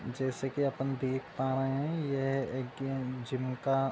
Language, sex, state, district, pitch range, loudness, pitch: Hindi, male, Uttar Pradesh, Budaun, 130-135 Hz, -34 LUFS, 135 Hz